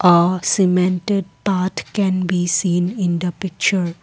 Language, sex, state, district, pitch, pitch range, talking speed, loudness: English, female, Assam, Kamrup Metropolitan, 180 Hz, 175-190 Hz, 135 wpm, -18 LUFS